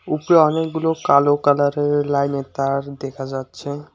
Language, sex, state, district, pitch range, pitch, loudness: Bengali, male, West Bengal, Alipurduar, 140-150 Hz, 145 Hz, -19 LUFS